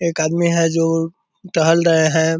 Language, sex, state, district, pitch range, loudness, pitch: Hindi, male, Bihar, Purnia, 160-170 Hz, -16 LUFS, 165 Hz